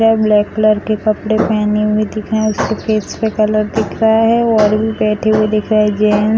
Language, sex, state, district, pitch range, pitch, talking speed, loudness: Hindi, female, Bihar, Samastipur, 210-220 Hz, 215 Hz, 245 wpm, -14 LUFS